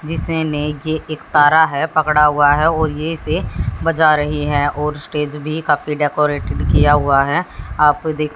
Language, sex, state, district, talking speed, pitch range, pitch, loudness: Hindi, female, Haryana, Jhajjar, 165 wpm, 150-155 Hz, 150 Hz, -16 LUFS